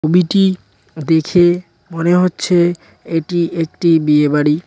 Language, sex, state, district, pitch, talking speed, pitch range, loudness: Bengali, male, West Bengal, Cooch Behar, 170 Hz, 75 wpm, 160-175 Hz, -15 LUFS